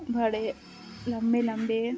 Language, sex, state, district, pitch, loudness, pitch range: Hindi, female, Jharkhand, Sahebganj, 230 Hz, -29 LUFS, 225-240 Hz